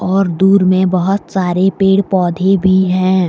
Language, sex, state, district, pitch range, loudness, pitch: Hindi, female, Jharkhand, Deoghar, 185-195 Hz, -13 LUFS, 185 Hz